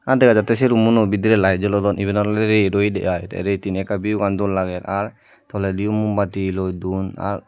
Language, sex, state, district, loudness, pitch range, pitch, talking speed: Chakma, male, Tripura, Dhalai, -19 LUFS, 95-105 Hz, 100 Hz, 215 wpm